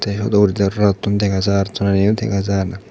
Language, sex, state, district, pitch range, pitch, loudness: Chakma, male, Tripura, Dhalai, 100-105 Hz, 100 Hz, -17 LUFS